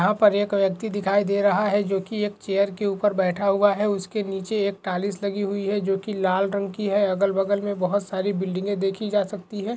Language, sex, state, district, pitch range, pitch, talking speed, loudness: Hindi, male, Jharkhand, Jamtara, 195-205 Hz, 200 Hz, 260 wpm, -23 LUFS